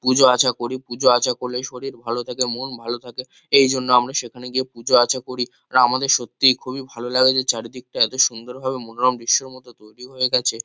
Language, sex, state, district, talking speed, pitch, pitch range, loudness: Bengali, male, West Bengal, Kolkata, 210 wpm, 125 Hz, 120-130 Hz, -20 LUFS